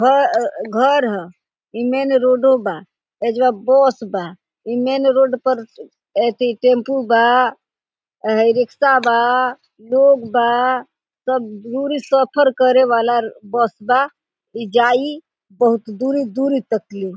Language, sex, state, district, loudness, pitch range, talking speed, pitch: Bhojpuri, female, Bihar, Gopalganj, -17 LUFS, 230-265 Hz, 125 wpm, 250 Hz